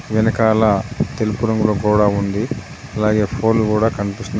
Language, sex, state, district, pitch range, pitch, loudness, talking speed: Telugu, male, Telangana, Adilabad, 105-110 Hz, 110 Hz, -17 LUFS, 125 wpm